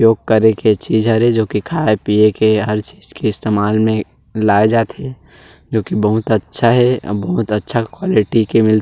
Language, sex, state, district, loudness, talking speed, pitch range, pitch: Chhattisgarhi, male, Chhattisgarh, Rajnandgaon, -15 LUFS, 190 wpm, 105-115 Hz, 110 Hz